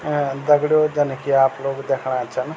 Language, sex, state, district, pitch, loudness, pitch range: Garhwali, male, Uttarakhand, Tehri Garhwal, 140 Hz, -19 LUFS, 135-150 Hz